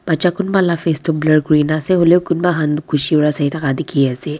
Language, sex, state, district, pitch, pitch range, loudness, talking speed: Nagamese, female, Nagaland, Dimapur, 155 Hz, 150-170 Hz, -15 LUFS, 245 wpm